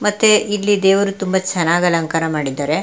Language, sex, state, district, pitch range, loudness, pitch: Kannada, female, Karnataka, Mysore, 165-205 Hz, -16 LUFS, 190 Hz